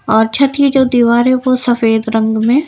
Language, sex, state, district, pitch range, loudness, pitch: Hindi, female, Bihar, Patna, 225-260 Hz, -12 LUFS, 240 Hz